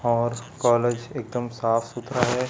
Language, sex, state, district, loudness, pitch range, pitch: Hindi, male, Chhattisgarh, Raipur, -25 LUFS, 120-125 Hz, 120 Hz